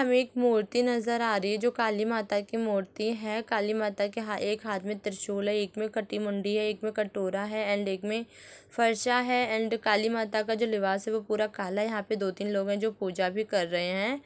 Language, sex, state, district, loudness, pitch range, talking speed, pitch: Hindi, female, Chhattisgarh, Rajnandgaon, -29 LUFS, 205-225 Hz, 235 wpm, 215 Hz